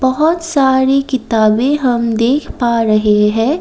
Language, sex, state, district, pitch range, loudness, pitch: Hindi, female, Assam, Kamrup Metropolitan, 225-275 Hz, -13 LUFS, 255 Hz